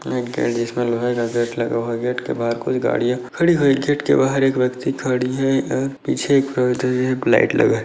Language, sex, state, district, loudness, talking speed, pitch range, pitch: Hindi, male, Chhattisgarh, Bastar, -19 LUFS, 250 wpm, 120-135 Hz, 125 Hz